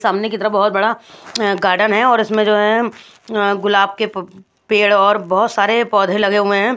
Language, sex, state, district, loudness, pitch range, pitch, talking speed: Hindi, female, Bihar, Patna, -15 LUFS, 200-220 Hz, 210 Hz, 185 wpm